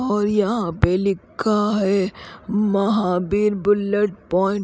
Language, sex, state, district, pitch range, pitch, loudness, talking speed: Hindi, female, Odisha, Khordha, 195-210 Hz, 205 Hz, -20 LUFS, 115 wpm